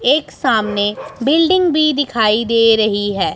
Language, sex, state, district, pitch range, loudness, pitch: Hindi, male, Punjab, Pathankot, 210-295 Hz, -15 LUFS, 230 Hz